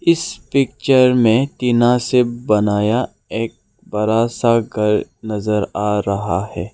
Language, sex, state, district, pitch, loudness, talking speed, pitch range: Hindi, male, Arunachal Pradesh, Lower Dibang Valley, 115 Hz, -17 LUFS, 125 wpm, 105-125 Hz